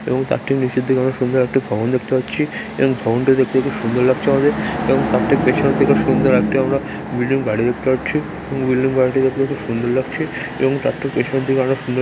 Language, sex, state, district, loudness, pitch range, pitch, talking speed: Bengali, male, West Bengal, Dakshin Dinajpur, -18 LUFS, 125-135 Hz, 130 Hz, 230 wpm